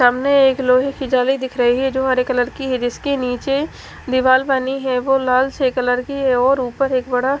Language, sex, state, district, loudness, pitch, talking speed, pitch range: Hindi, female, Haryana, Charkhi Dadri, -17 LUFS, 260 Hz, 225 wpm, 250-270 Hz